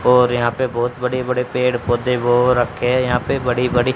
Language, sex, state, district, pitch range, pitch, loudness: Hindi, male, Haryana, Rohtak, 120-125 Hz, 125 Hz, -18 LUFS